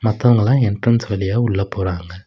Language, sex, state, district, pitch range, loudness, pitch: Tamil, male, Tamil Nadu, Nilgiris, 95-120 Hz, -17 LUFS, 105 Hz